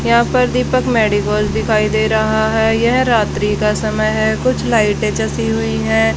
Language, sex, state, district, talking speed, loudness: Hindi, female, Haryana, Charkhi Dadri, 175 wpm, -15 LUFS